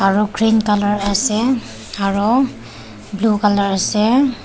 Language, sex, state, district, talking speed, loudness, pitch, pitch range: Nagamese, female, Nagaland, Dimapur, 110 wpm, -16 LUFS, 210 Hz, 195-225 Hz